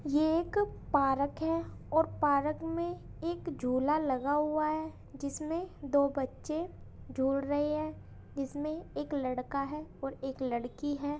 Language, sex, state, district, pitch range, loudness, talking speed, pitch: Hindi, female, Uttar Pradesh, Muzaffarnagar, 275-315 Hz, -33 LUFS, 140 wpm, 290 Hz